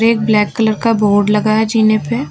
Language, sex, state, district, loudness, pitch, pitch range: Hindi, female, Uttar Pradesh, Lucknow, -13 LUFS, 215 Hz, 210-225 Hz